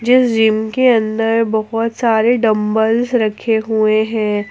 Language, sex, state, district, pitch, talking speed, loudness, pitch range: Hindi, female, Jharkhand, Ranchi, 225 Hz, 135 wpm, -15 LUFS, 220-230 Hz